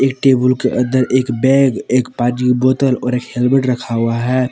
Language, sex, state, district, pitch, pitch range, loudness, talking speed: Hindi, male, Jharkhand, Palamu, 125 Hz, 125-130 Hz, -15 LUFS, 200 wpm